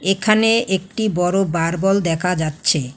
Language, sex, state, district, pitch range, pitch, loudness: Bengali, female, West Bengal, Alipurduar, 165-195 Hz, 190 Hz, -18 LUFS